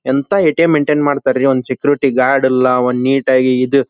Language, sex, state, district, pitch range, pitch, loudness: Kannada, male, Karnataka, Belgaum, 130-145 Hz, 135 Hz, -13 LUFS